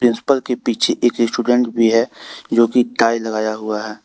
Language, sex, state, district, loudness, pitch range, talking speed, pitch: Hindi, male, Jharkhand, Deoghar, -17 LUFS, 110-120 Hz, 195 wpm, 115 Hz